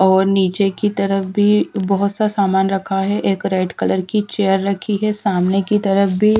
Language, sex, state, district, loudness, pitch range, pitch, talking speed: Hindi, female, Punjab, Fazilka, -17 LUFS, 195-205 Hz, 195 Hz, 195 wpm